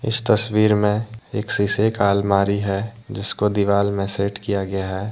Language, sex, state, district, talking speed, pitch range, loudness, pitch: Hindi, male, Jharkhand, Deoghar, 175 wpm, 100-110 Hz, -19 LUFS, 100 Hz